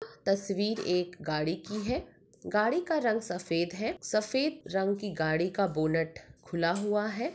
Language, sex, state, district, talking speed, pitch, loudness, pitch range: Hindi, female, Maharashtra, Pune, 155 wpm, 195 Hz, -31 LUFS, 170-215 Hz